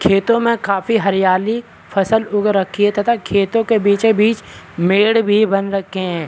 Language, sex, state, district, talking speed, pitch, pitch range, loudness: Hindi, male, Bihar, Vaishali, 170 wpm, 205 Hz, 195-225 Hz, -16 LUFS